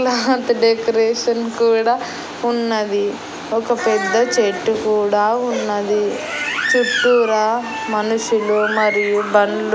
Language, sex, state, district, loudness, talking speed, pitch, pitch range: Telugu, female, Andhra Pradesh, Annamaya, -17 LUFS, 85 wpm, 225 Hz, 210-240 Hz